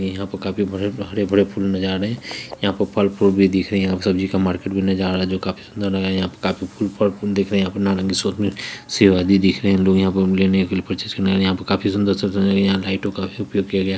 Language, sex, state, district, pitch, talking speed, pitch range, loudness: Hindi, female, Bihar, Purnia, 95 Hz, 270 wpm, 95-100 Hz, -19 LUFS